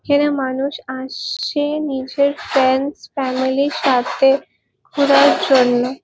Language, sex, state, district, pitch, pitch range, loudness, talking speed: Bengali, female, West Bengal, Purulia, 270 Hz, 260-285 Hz, -17 LUFS, 100 wpm